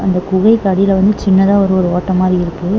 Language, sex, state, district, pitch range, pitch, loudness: Tamil, female, Tamil Nadu, Namakkal, 185-200 Hz, 190 Hz, -12 LUFS